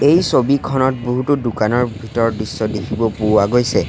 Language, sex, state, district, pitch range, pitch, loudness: Assamese, male, Assam, Sonitpur, 110-130 Hz, 120 Hz, -17 LUFS